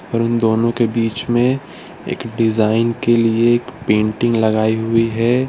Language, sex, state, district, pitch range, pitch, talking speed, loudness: Hindi, male, Gujarat, Valsad, 110-120 Hz, 115 Hz, 155 wpm, -17 LUFS